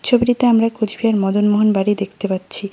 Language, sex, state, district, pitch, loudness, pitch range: Bengali, female, West Bengal, Cooch Behar, 210 Hz, -17 LUFS, 200-225 Hz